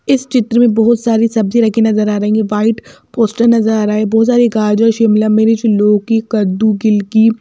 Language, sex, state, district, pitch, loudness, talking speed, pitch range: Hindi, female, Madhya Pradesh, Bhopal, 220 Hz, -12 LUFS, 200 wpm, 215-230 Hz